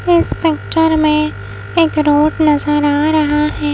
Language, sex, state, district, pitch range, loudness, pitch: Hindi, female, Madhya Pradesh, Bhopal, 295-320 Hz, -14 LUFS, 305 Hz